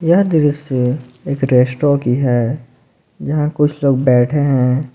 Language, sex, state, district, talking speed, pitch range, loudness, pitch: Hindi, male, Jharkhand, Ranchi, 135 wpm, 125-150 Hz, -15 LUFS, 135 Hz